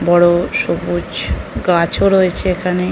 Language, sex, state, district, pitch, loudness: Bengali, female, West Bengal, North 24 Parganas, 175 Hz, -15 LUFS